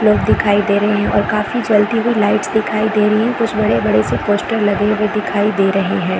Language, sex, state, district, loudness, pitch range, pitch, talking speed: Hindi, female, Chhattisgarh, Bilaspur, -15 LUFS, 205-215 Hz, 210 Hz, 230 wpm